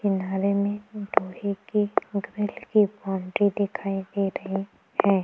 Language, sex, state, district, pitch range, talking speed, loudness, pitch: Hindi, female, Chhattisgarh, Korba, 195-205 Hz, 70 wpm, -26 LUFS, 200 Hz